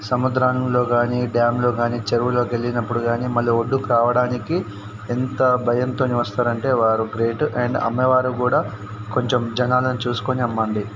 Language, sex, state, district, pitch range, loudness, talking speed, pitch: Telugu, male, Telangana, Nalgonda, 115-125 Hz, -20 LUFS, 125 wpm, 120 Hz